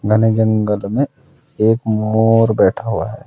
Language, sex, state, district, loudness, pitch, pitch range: Hindi, male, Uttar Pradesh, Saharanpur, -16 LUFS, 110 Hz, 110-115 Hz